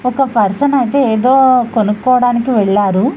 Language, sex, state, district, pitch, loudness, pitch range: Telugu, female, Andhra Pradesh, Visakhapatnam, 245 Hz, -12 LUFS, 215-265 Hz